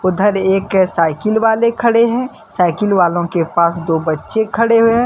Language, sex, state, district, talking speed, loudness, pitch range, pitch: Hindi, male, Jharkhand, Deoghar, 180 wpm, -14 LUFS, 170-230 Hz, 195 Hz